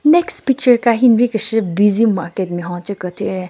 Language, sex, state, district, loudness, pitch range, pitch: Rengma, female, Nagaland, Kohima, -15 LUFS, 185-245 Hz, 215 Hz